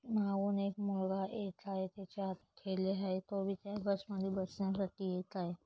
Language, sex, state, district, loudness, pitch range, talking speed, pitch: Marathi, female, Maharashtra, Chandrapur, -39 LUFS, 190-200 Hz, 170 wpm, 195 Hz